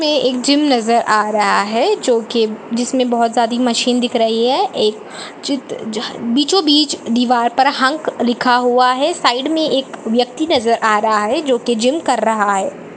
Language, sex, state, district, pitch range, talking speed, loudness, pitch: Hindi, female, Chhattisgarh, Balrampur, 230-275 Hz, 185 wpm, -15 LUFS, 245 Hz